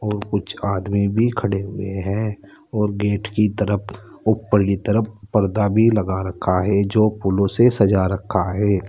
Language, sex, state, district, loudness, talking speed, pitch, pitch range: Hindi, male, Uttar Pradesh, Saharanpur, -20 LUFS, 170 wpm, 100 Hz, 100-105 Hz